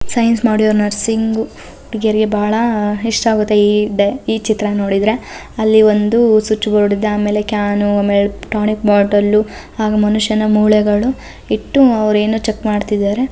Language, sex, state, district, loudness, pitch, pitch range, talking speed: Kannada, female, Karnataka, Chamarajanagar, -14 LUFS, 215 Hz, 210-220 Hz, 140 wpm